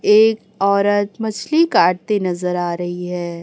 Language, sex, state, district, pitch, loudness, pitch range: Hindi, female, Chhattisgarh, Raipur, 200 Hz, -18 LUFS, 180-215 Hz